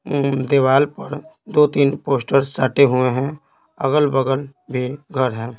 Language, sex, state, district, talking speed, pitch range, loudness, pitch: Hindi, male, Bihar, Patna, 130 wpm, 130-145 Hz, -18 LUFS, 140 Hz